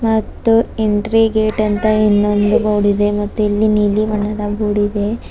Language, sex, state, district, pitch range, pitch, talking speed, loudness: Kannada, female, Karnataka, Bidar, 205-215 Hz, 210 Hz, 145 wpm, -15 LUFS